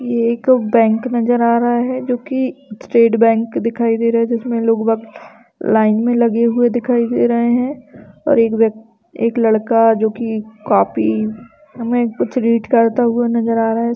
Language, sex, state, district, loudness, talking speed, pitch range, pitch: Hindi, female, Uttar Pradesh, Jalaun, -15 LUFS, 180 wpm, 225-240 Hz, 230 Hz